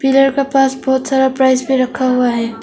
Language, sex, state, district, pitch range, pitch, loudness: Hindi, female, Arunachal Pradesh, Longding, 255-270 Hz, 265 Hz, -14 LUFS